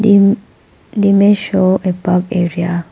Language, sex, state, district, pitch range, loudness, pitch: English, female, Arunachal Pradesh, Papum Pare, 180-200 Hz, -13 LUFS, 190 Hz